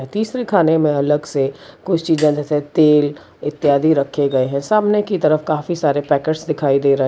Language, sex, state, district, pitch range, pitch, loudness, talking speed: Hindi, female, Gujarat, Valsad, 145-160 Hz, 150 Hz, -17 LUFS, 195 wpm